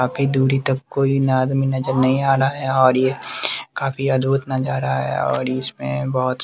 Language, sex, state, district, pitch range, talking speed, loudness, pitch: Hindi, male, Bihar, West Champaran, 130-135 Hz, 205 wpm, -19 LUFS, 130 Hz